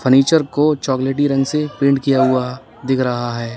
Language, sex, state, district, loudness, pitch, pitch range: Hindi, male, Uttar Pradesh, Lalitpur, -16 LUFS, 135 Hz, 130-145 Hz